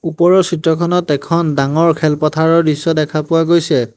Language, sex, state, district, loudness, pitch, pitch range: Assamese, male, Assam, Hailakandi, -14 LUFS, 165 Hz, 155-170 Hz